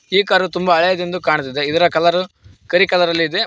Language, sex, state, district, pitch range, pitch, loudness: Kannada, male, Karnataka, Koppal, 165-180 Hz, 175 Hz, -16 LUFS